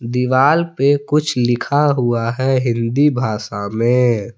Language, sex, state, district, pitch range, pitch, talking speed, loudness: Hindi, male, Jharkhand, Palamu, 115-140 Hz, 125 Hz, 125 wpm, -16 LUFS